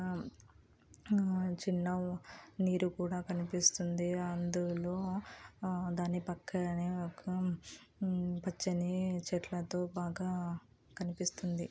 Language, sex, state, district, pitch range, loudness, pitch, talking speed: Telugu, female, Andhra Pradesh, Anantapur, 175-185 Hz, -37 LUFS, 180 Hz, 75 wpm